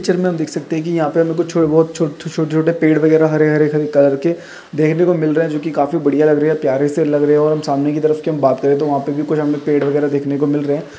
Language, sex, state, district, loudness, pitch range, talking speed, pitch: Hindi, male, Uttar Pradesh, Jyotiba Phule Nagar, -15 LUFS, 145-160 Hz, 305 wpm, 155 Hz